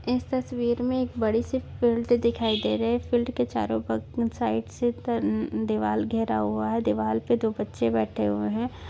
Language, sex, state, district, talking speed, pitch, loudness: Hindi, female, Maharashtra, Nagpur, 160 wpm, 205 Hz, -26 LUFS